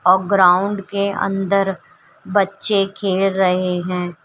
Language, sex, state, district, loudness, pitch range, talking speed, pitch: Hindi, female, Uttar Pradesh, Shamli, -18 LUFS, 185-200 Hz, 115 wpm, 195 Hz